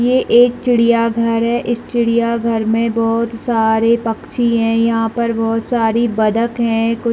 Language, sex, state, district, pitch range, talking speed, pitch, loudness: Hindi, female, Chhattisgarh, Bilaspur, 225-235 Hz, 170 wpm, 230 Hz, -15 LUFS